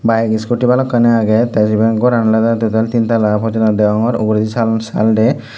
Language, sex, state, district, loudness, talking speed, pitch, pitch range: Chakma, male, Tripura, Dhalai, -14 LUFS, 185 wpm, 110 Hz, 110-115 Hz